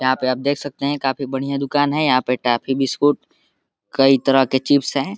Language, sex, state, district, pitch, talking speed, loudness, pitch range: Hindi, male, Uttar Pradesh, Deoria, 135 Hz, 220 wpm, -18 LUFS, 130-145 Hz